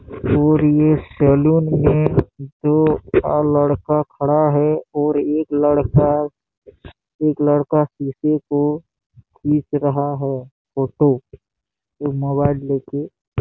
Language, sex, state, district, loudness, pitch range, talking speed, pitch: Hindi, male, Chhattisgarh, Bastar, -18 LUFS, 140-150 Hz, 105 wpm, 145 Hz